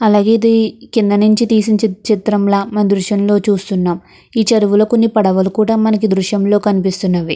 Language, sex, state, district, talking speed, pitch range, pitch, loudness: Telugu, female, Andhra Pradesh, Krishna, 130 wpm, 200-220 Hz, 205 Hz, -13 LUFS